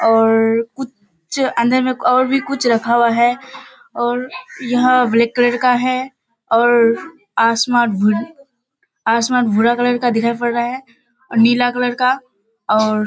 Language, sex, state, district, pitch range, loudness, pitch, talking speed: Hindi, female, Bihar, Kishanganj, 230-255 Hz, -16 LUFS, 240 Hz, 150 wpm